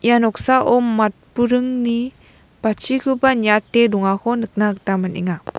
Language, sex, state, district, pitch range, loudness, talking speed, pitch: Garo, female, Meghalaya, West Garo Hills, 210-245 Hz, -17 LUFS, 95 wpm, 230 Hz